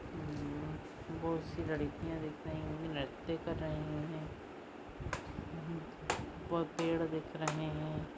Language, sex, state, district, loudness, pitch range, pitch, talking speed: Hindi, female, Maharashtra, Aurangabad, -40 LUFS, 155-165 Hz, 155 Hz, 105 wpm